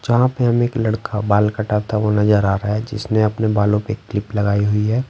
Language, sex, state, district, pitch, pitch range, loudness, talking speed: Hindi, male, Bihar, Patna, 105 Hz, 105-110 Hz, -18 LUFS, 250 wpm